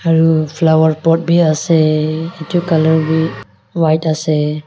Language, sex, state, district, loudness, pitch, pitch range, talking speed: Nagamese, female, Nagaland, Kohima, -14 LUFS, 160 Hz, 155-165 Hz, 130 wpm